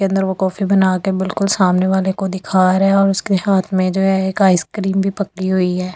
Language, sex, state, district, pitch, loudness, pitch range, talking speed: Hindi, female, Delhi, New Delhi, 190 Hz, -16 LUFS, 185-195 Hz, 250 wpm